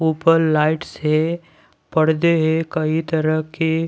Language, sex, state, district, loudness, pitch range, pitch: Hindi, male, Punjab, Pathankot, -19 LUFS, 155-165 Hz, 160 Hz